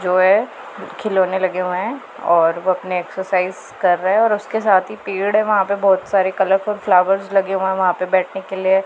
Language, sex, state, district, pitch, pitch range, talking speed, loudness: Hindi, female, Punjab, Pathankot, 190 Hz, 185-195 Hz, 215 wpm, -18 LUFS